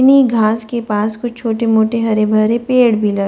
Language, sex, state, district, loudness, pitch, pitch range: Hindi, female, Delhi, New Delhi, -14 LUFS, 225 Hz, 215-240 Hz